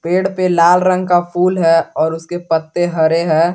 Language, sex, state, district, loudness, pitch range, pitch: Hindi, male, Jharkhand, Garhwa, -14 LUFS, 165-180 Hz, 175 Hz